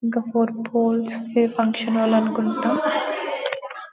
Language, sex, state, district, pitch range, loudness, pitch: Telugu, female, Telangana, Karimnagar, 225-235 Hz, -22 LUFS, 230 Hz